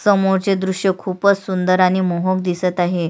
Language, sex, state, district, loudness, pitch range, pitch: Marathi, female, Maharashtra, Sindhudurg, -18 LUFS, 180-195 Hz, 185 Hz